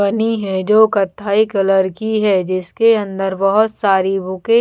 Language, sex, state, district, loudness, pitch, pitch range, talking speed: Hindi, female, Bihar, Patna, -15 LUFS, 200 Hz, 190-220 Hz, 170 wpm